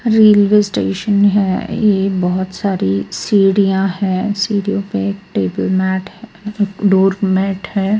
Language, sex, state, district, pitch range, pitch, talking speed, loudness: Hindi, female, Bihar, Patna, 185-205 Hz, 195 Hz, 120 wpm, -15 LUFS